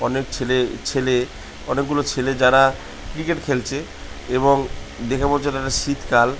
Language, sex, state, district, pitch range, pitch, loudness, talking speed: Bengali, male, West Bengal, Jhargram, 125-140 Hz, 135 Hz, -20 LUFS, 130 wpm